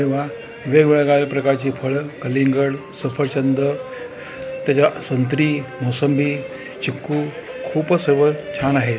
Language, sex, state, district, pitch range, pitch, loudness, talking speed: Marathi, male, Maharashtra, Pune, 135-150 Hz, 140 Hz, -19 LUFS, 95 wpm